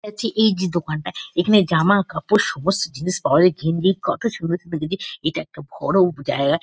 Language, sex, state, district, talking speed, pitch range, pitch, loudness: Bengali, female, West Bengal, Kolkata, 190 wpm, 160-200 Hz, 180 Hz, -20 LUFS